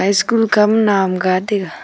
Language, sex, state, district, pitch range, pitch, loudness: Wancho, female, Arunachal Pradesh, Longding, 190-215 Hz, 200 Hz, -15 LUFS